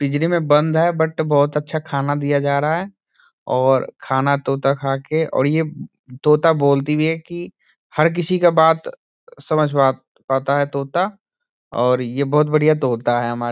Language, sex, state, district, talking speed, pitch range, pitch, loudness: Hindi, male, Bihar, Saran, 175 wpm, 135-160 Hz, 150 Hz, -18 LUFS